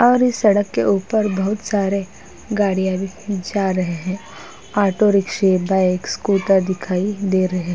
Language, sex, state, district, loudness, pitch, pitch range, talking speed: Hindi, female, Uttar Pradesh, Hamirpur, -19 LUFS, 195 Hz, 185-205 Hz, 145 wpm